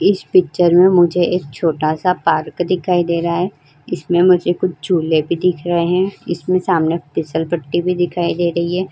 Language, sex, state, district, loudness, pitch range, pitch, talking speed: Hindi, female, Uttar Pradesh, Jyotiba Phule Nagar, -16 LUFS, 170-180 Hz, 175 Hz, 190 wpm